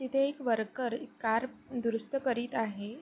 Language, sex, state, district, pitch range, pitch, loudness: Marathi, female, Maharashtra, Sindhudurg, 225-260 Hz, 240 Hz, -33 LUFS